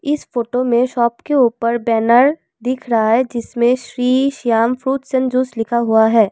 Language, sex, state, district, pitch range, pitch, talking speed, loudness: Hindi, female, Assam, Kamrup Metropolitan, 230-260 Hz, 245 Hz, 180 wpm, -16 LUFS